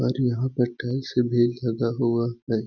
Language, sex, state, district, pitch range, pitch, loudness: Hindi, male, Chhattisgarh, Balrampur, 115-125 Hz, 120 Hz, -24 LUFS